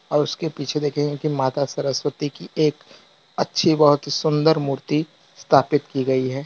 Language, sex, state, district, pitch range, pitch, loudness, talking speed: Hindi, male, Gujarat, Valsad, 140-155 Hz, 145 Hz, -21 LUFS, 160 wpm